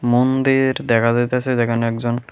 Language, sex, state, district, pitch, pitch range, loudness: Bengali, male, Tripura, West Tripura, 120 Hz, 115-130 Hz, -18 LUFS